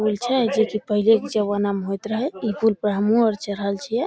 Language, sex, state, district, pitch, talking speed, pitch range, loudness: Maithili, female, Bihar, Samastipur, 215 Hz, 250 wpm, 205-225 Hz, -21 LUFS